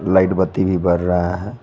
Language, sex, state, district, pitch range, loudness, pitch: Hindi, male, Jharkhand, Garhwa, 90-95 Hz, -18 LUFS, 95 Hz